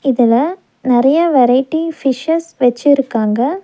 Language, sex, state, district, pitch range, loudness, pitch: Tamil, female, Tamil Nadu, Nilgiris, 245-320 Hz, -14 LUFS, 270 Hz